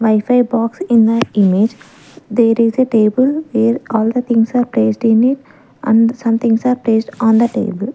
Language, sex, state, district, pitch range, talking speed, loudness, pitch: English, female, Maharashtra, Gondia, 225-245 Hz, 180 wpm, -14 LUFS, 230 Hz